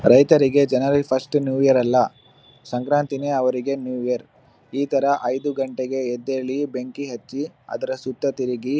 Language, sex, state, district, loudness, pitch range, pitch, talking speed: Kannada, male, Karnataka, Bellary, -21 LUFS, 125-140 Hz, 135 Hz, 135 wpm